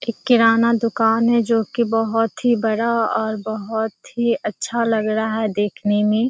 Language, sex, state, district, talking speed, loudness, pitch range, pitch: Hindi, female, Bihar, Kishanganj, 170 wpm, -19 LUFS, 220-235 Hz, 225 Hz